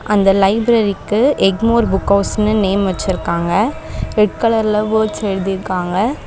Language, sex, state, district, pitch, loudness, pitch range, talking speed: Tamil, female, Tamil Nadu, Chennai, 210 Hz, -15 LUFS, 195-220 Hz, 105 wpm